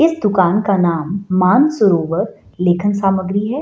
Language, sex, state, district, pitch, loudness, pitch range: Hindi, female, Bihar, Gaya, 195 Hz, -15 LUFS, 185-210 Hz